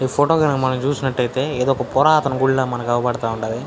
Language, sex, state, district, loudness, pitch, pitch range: Telugu, male, Andhra Pradesh, Anantapur, -18 LUFS, 130 Hz, 120-135 Hz